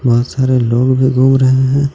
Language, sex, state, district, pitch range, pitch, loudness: Hindi, male, Jharkhand, Garhwa, 125-130 Hz, 130 Hz, -12 LUFS